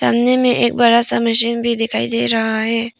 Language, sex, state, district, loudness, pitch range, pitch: Hindi, female, Arunachal Pradesh, Papum Pare, -15 LUFS, 225-235 Hz, 235 Hz